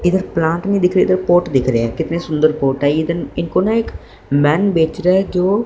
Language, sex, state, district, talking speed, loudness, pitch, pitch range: Hindi, male, Punjab, Fazilka, 245 wpm, -16 LUFS, 170 Hz, 150-185 Hz